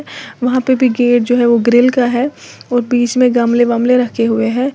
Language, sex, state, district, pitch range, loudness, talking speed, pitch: Hindi, female, Uttar Pradesh, Lalitpur, 240-250 Hz, -13 LUFS, 225 wpm, 245 Hz